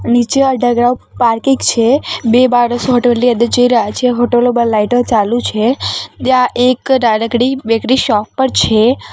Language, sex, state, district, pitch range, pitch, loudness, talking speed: Gujarati, female, Gujarat, Gandhinagar, 235-250 Hz, 245 Hz, -12 LUFS, 160 wpm